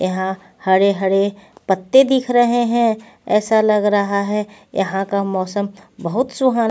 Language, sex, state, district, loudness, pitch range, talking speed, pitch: Hindi, female, Punjab, Pathankot, -18 LUFS, 195-230 Hz, 135 wpm, 205 Hz